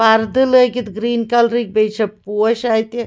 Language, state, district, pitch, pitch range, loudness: Kashmiri, Punjab, Kapurthala, 230 Hz, 215-240 Hz, -16 LUFS